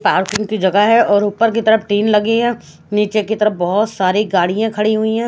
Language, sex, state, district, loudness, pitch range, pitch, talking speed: Hindi, female, Odisha, Khordha, -15 LUFS, 205-220 Hz, 210 Hz, 225 wpm